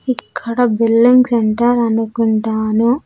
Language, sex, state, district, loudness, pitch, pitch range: Telugu, female, Andhra Pradesh, Sri Satya Sai, -14 LUFS, 230 Hz, 225-245 Hz